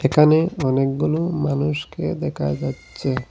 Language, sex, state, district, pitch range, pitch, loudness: Bengali, male, Assam, Hailakandi, 130-155 Hz, 140 Hz, -21 LUFS